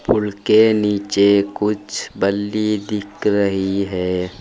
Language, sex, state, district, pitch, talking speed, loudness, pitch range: Hindi, male, Uttar Pradesh, Saharanpur, 100 Hz, 110 wpm, -18 LUFS, 100-105 Hz